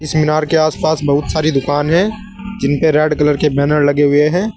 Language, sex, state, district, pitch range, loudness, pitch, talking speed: Hindi, male, Uttar Pradesh, Saharanpur, 145-160 Hz, -14 LUFS, 155 Hz, 225 wpm